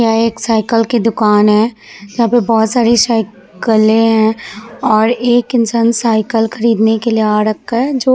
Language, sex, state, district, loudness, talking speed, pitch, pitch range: Hindi, female, Bihar, Vaishali, -12 LUFS, 170 wpm, 225 Hz, 220-235 Hz